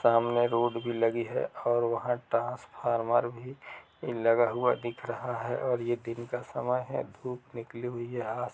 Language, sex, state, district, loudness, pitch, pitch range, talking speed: Hindi, male, Uttar Pradesh, Jalaun, -31 LUFS, 120 Hz, 115-125 Hz, 185 wpm